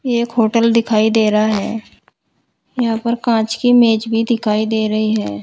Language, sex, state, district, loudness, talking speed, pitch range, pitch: Hindi, female, Uttar Pradesh, Saharanpur, -15 LUFS, 175 wpm, 215-235 Hz, 225 Hz